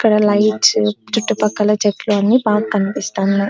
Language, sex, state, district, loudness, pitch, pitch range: Telugu, female, Andhra Pradesh, Anantapur, -16 LUFS, 210 Hz, 200-215 Hz